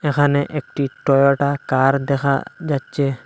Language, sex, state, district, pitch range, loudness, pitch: Bengali, male, Assam, Hailakandi, 135-145 Hz, -19 LUFS, 140 Hz